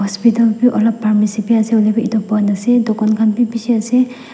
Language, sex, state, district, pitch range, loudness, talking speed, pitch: Nagamese, female, Nagaland, Dimapur, 215-235 Hz, -14 LUFS, 205 wpm, 225 Hz